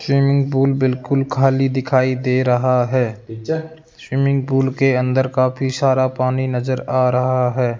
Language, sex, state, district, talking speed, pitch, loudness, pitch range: Hindi, male, Rajasthan, Jaipur, 145 wpm, 130 Hz, -18 LUFS, 125-135 Hz